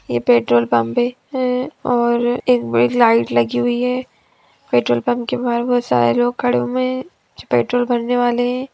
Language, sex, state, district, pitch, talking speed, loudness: Hindi, female, Bihar, Gaya, 240 Hz, 170 wpm, -17 LUFS